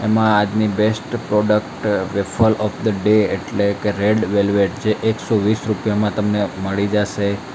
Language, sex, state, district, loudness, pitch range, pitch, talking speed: Gujarati, male, Gujarat, Valsad, -18 LUFS, 100-110 Hz, 105 Hz, 165 wpm